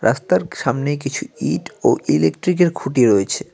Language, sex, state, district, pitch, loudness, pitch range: Bengali, male, West Bengal, Cooch Behar, 135 Hz, -18 LUFS, 100-145 Hz